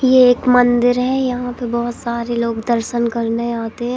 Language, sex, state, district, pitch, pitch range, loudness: Hindi, female, Madhya Pradesh, Katni, 240 Hz, 235-245 Hz, -17 LUFS